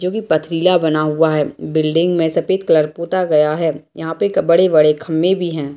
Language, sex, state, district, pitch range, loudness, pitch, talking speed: Hindi, female, Bihar, Gopalganj, 155-180 Hz, -16 LUFS, 160 Hz, 210 wpm